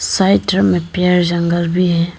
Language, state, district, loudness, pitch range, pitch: Hindi, Arunachal Pradesh, Lower Dibang Valley, -14 LUFS, 170-190 Hz, 180 Hz